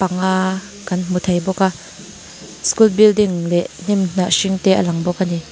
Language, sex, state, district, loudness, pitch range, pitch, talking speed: Mizo, female, Mizoram, Aizawl, -17 LUFS, 180-195 Hz, 185 Hz, 195 wpm